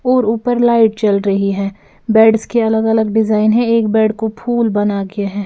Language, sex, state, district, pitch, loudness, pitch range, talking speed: Hindi, female, Bihar, Patna, 220 Hz, -14 LUFS, 205-230 Hz, 195 wpm